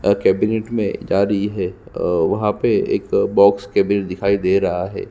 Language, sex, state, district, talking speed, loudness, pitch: Hindi, male, Chhattisgarh, Sukma, 175 wpm, -18 LUFS, 100 Hz